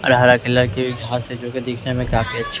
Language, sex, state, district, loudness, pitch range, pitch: Hindi, male, Maharashtra, Mumbai Suburban, -19 LUFS, 120-125 Hz, 125 Hz